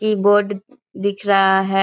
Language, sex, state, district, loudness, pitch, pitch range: Hindi, female, Bihar, Begusarai, -17 LUFS, 200 Hz, 195-205 Hz